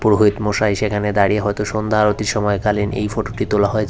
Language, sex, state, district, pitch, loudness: Bengali, male, Tripura, West Tripura, 105 Hz, -18 LUFS